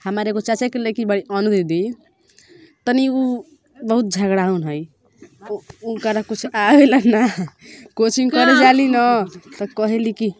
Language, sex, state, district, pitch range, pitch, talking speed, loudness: Bhojpuri, female, Uttar Pradesh, Ghazipur, 205-255 Hz, 225 Hz, 145 wpm, -17 LUFS